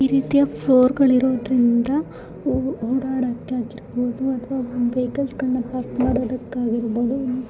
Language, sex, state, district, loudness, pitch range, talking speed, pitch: Kannada, female, Karnataka, Bellary, -21 LUFS, 245-265 Hz, 95 wpm, 255 Hz